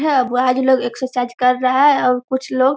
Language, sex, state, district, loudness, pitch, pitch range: Hindi, female, Bihar, Darbhanga, -16 LUFS, 255 Hz, 250-260 Hz